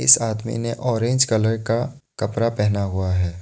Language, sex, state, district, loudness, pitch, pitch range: Hindi, male, Assam, Kamrup Metropolitan, -21 LUFS, 115 Hz, 100-115 Hz